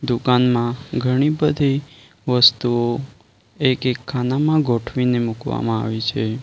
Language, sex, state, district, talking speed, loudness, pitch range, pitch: Gujarati, male, Gujarat, Valsad, 95 wpm, -19 LUFS, 115-135 Hz, 125 Hz